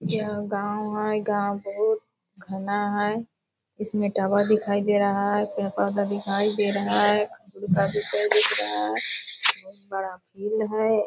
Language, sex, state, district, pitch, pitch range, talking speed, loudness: Hindi, female, Bihar, Purnia, 205 Hz, 195-210 Hz, 145 wpm, -24 LUFS